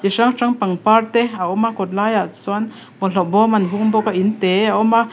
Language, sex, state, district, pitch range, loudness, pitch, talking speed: Mizo, female, Mizoram, Aizawl, 195-225 Hz, -17 LUFS, 215 Hz, 270 wpm